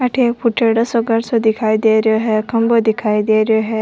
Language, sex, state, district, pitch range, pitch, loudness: Rajasthani, female, Rajasthan, Churu, 220-230 Hz, 220 Hz, -15 LUFS